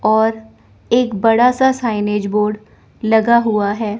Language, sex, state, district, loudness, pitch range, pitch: Hindi, female, Chandigarh, Chandigarh, -15 LUFS, 210-235 Hz, 220 Hz